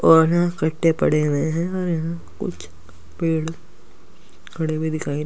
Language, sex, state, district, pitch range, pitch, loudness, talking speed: Hindi, male, Delhi, New Delhi, 150-165 Hz, 160 Hz, -22 LUFS, 160 wpm